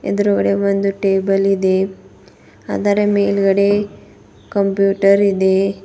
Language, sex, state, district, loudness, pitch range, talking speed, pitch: Kannada, female, Karnataka, Bidar, -16 LUFS, 190-200 Hz, 80 wpm, 195 Hz